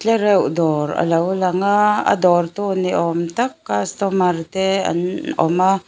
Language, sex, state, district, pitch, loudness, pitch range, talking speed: Mizo, female, Mizoram, Aizawl, 185 Hz, -18 LUFS, 170-195 Hz, 165 wpm